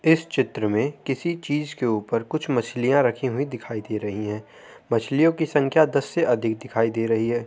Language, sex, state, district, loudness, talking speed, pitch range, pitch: Hindi, male, Uttar Pradesh, Hamirpur, -23 LUFS, 200 wpm, 115-150 Hz, 125 Hz